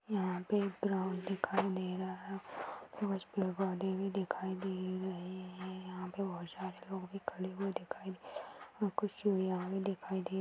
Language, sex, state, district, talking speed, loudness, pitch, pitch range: Hindi, female, Uttar Pradesh, Jyotiba Phule Nagar, 205 wpm, -39 LUFS, 190 Hz, 185-195 Hz